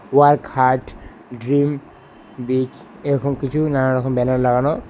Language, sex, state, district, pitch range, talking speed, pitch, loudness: Bengali, male, West Bengal, Alipurduar, 125-145 Hz, 110 wpm, 130 Hz, -19 LUFS